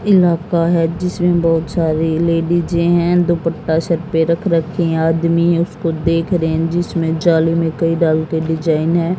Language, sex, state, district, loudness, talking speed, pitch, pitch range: Hindi, female, Haryana, Jhajjar, -16 LUFS, 170 wpm, 165 Hz, 160-170 Hz